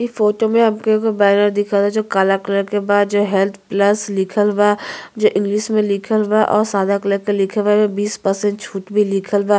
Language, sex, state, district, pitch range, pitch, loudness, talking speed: Bhojpuri, female, Uttar Pradesh, Ghazipur, 200-210 Hz, 205 Hz, -16 LUFS, 205 wpm